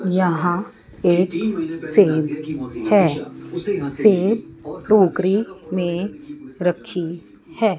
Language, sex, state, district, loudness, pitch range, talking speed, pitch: Hindi, female, Chandigarh, Chandigarh, -20 LUFS, 165-205 Hz, 70 wpm, 180 Hz